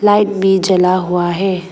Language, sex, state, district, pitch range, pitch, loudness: Hindi, female, Arunachal Pradesh, Lower Dibang Valley, 180-195 Hz, 190 Hz, -14 LUFS